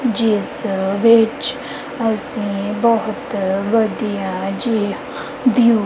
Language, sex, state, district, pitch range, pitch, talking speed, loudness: Punjabi, female, Punjab, Kapurthala, 200-230 Hz, 220 Hz, 80 wpm, -18 LUFS